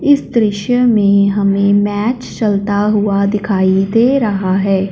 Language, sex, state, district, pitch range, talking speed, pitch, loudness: Hindi, female, Punjab, Fazilka, 200-225 Hz, 135 wpm, 205 Hz, -13 LUFS